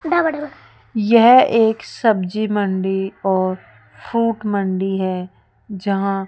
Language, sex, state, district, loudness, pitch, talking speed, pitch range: Hindi, female, Rajasthan, Jaipur, -18 LUFS, 200 Hz, 95 wpm, 190-230 Hz